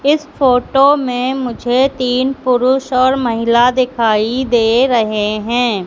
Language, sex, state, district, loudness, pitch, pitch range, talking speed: Hindi, female, Madhya Pradesh, Katni, -14 LUFS, 250 Hz, 235-260 Hz, 125 wpm